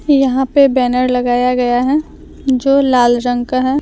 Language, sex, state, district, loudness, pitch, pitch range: Hindi, female, Jharkhand, Deoghar, -13 LUFS, 255 Hz, 245-275 Hz